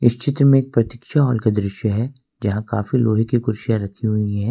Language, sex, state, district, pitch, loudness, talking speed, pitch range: Hindi, male, Jharkhand, Ranchi, 115 Hz, -19 LUFS, 225 wpm, 105-125 Hz